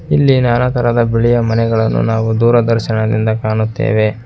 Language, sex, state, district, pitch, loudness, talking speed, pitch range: Kannada, male, Karnataka, Koppal, 115 Hz, -13 LUFS, 110 wpm, 110-120 Hz